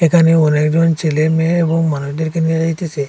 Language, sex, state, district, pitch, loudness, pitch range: Bengali, male, Assam, Hailakandi, 160 Hz, -15 LUFS, 155-165 Hz